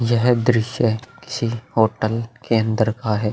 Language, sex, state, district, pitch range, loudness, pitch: Hindi, male, Uttar Pradesh, Hamirpur, 110-120 Hz, -20 LUFS, 115 Hz